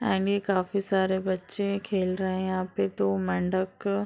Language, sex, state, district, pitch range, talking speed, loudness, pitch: Hindi, female, Uttar Pradesh, Deoria, 185-200 Hz, 180 wpm, -28 LUFS, 190 Hz